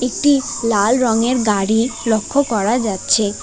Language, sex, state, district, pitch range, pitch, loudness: Bengali, female, West Bengal, Alipurduar, 210-250 Hz, 230 Hz, -16 LUFS